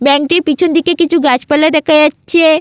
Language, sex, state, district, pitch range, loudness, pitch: Bengali, female, West Bengal, Malda, 295-335 Hz, -11 LUFS, 315 Hz